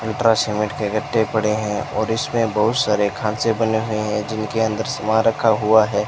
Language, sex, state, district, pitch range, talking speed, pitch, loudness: Hindi, male, Rajasthan, Bikaner, 105-110 Hz, 195 wpm, 110 Hz, -19 LUFS